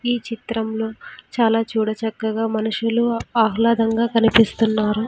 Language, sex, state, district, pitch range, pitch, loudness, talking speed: Telugu, female, Andhra Pradesh, Sri Satya Sai, 220-230 Hz, 225 Hz, -20 LUFS, 95 wpm